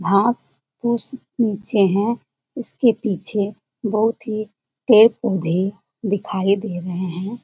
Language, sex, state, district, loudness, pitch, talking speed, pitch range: Hindi, female, Bihar, Jamui, -20 LUFS, 210 Hz, 90 wpm, 195-230 Hz